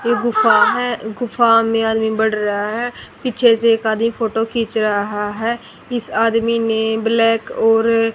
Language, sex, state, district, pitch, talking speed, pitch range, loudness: Hindi, female, Haryana, Rohtak, 225 Hz, 160 wpm, 220-230 Hz, -17 LUFS